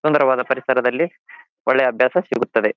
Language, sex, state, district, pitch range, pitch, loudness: Kannada, male, Karnataka, Bijapur, 130-155 Hz, 130 Hz, -19 LUFS